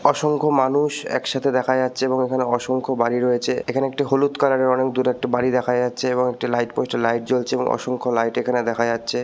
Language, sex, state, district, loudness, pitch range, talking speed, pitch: Bengali, male, West Bengal, Purulia, -21 LUFS, 125-130 Hz, 215 wpm, 125 Hz